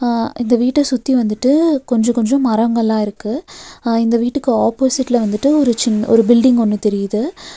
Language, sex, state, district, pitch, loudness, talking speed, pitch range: Tamil, female, Tamil Nadu, Nilgiris, 240 Hz, -15 LUFS, 160 wpm, 225-260 Hz